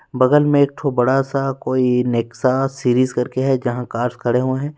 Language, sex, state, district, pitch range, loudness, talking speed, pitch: Hindi, male, Chhattisgarh, Rajnandgaon, 125-135 Hz, -18 LUFS, 190 wpm, 130 Hz